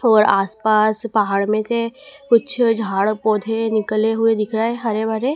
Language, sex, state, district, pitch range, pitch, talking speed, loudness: Hindi, female, Madhya Pradesh, Dhar, 215-230 Hz, 220 Hz, 155 wpm, -18 LUFS